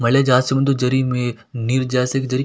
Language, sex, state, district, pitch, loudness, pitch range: Kannada, male, Karnataka, Shimoga, 130 Hz, -18 LUFS, 125-130 Hz